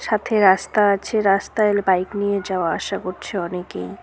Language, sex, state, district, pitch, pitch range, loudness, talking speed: Bengali, female, West Bengal, Cooch Behar, 195 Hz, 185-210 Hz, -20 LUFS, 150 wpm